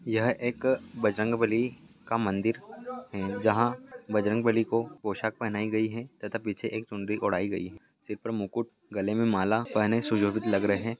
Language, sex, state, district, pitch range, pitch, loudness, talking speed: Hindi, male, Bihar, Saharsa, 105-115 Hz, 110 Hz, -29 LUFS, 180 wpm